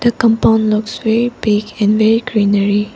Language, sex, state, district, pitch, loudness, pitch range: English, female, Arunachal Pradesh, Lower Dibang Valley, 220 Hz, -14 LUFS, 210-225 Hz